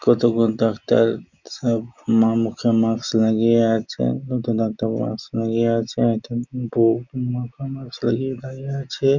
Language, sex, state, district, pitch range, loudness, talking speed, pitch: Bengali, male, West Bengal, Jhargram, 115-125 Hz, -21 LUFS, 130 wpm, 115 Hz